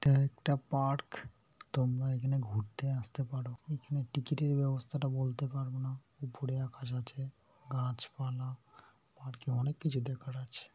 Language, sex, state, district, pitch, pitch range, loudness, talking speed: Bengali, male, West Bengal, North 24 Parganas, 130 Hz, 125-140 Hz, -36 LUFS, 135 wpm